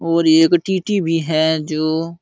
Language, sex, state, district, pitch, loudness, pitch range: Hindi, male, Uttar Pradesh, Jalaun, 165 Hz, -16 LUFS, 160-170 Hz